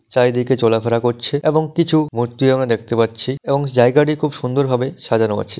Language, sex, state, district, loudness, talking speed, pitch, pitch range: Bengali, male, West Bengal, Dakshin Dinajpur, -17 LUFS, 160 wpm, 125 Hz, 115-145 Hz